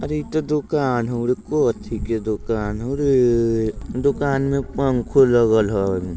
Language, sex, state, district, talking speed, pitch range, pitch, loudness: Bajjika, male, Bihar, Vaishali, 155 wpm, 110-140 Hz, 120 Hz, -20 LUFS